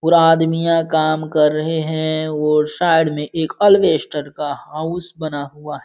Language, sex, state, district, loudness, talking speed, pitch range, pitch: Hindi, male, Bihar, Jamui, -17 LUFS, 175 wpm, 150-165 Hz, 155 Hz